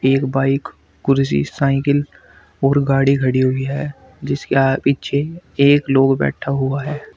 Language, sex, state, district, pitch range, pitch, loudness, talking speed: Hindi, male, Uttar Pradesh, Shamli, 135-140 Hz, 135 Hz, -17 LUFS, 140 wpm